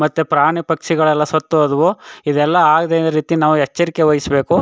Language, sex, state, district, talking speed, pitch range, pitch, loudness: Kannada, male, Karnataka, Chamarajanagar, 145 wpm, 150-165 Hz, 155 Hz, -15 LUFS